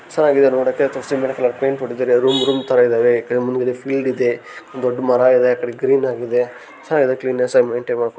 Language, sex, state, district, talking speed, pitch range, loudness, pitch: Kannada, male, Karnataka, Gulbarga, 145 wpm, 125-135 Hz, -17 LUFS, 130 Hz